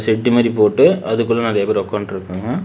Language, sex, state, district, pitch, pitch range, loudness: Tamil, male, Tamil Nadu, Namakkal, 110 Hz, 105-115 Hz, -16 LUFS